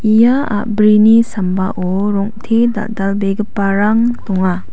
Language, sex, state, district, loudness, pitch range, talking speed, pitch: Garo, female, Meghalaya, South Garo Hills, -14 LUFS, 195-225 Hz, 75 wpm, 210 Hz